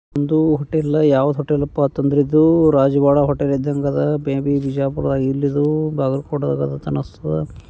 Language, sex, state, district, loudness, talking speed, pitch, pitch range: Kannada, male, Karnataka, Bijapur, -18 LUFS, 150 wpm, 140 Hz, 135-150 Hz